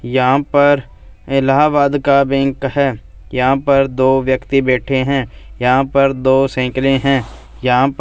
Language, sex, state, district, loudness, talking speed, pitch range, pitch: Hindi, male, Punjab, Fazilka, -14 LUFS, 135 wpm, 130-140 Hz, 135 Hz